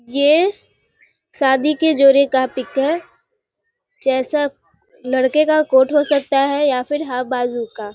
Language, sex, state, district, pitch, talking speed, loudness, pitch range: Hindi, female, Bihar, Muzaffarpur, 280 Hz, 150 wpm, -17 LUFS, 260-305 Hz